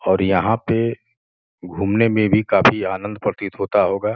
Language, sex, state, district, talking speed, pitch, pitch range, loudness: Hindi, male, Uttar Pradesh, Gorakhpur, 160 wpm, 105 Hz, 95-115 Hz, -18 LUFS